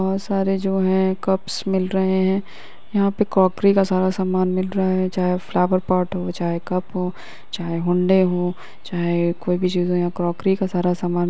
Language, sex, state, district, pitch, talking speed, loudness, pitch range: Hindi, female, Uttar Pradesh, Hamirpur, 185 Hz, 200 wpm, -21 LUFS, 180-190 Hz